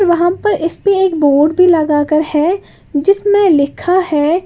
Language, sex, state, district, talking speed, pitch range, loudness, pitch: Hindi, female, Uttar Pradesh, Lalitpur, 160 wpm, 300-380 Hz, -13 LUFS, 345 Hz